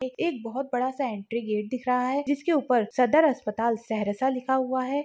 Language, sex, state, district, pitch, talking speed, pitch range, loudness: Hindi, female, Bihar, Saharsa, 255 Hz, 200 wpm, 230-270 Hz, -26 LUFS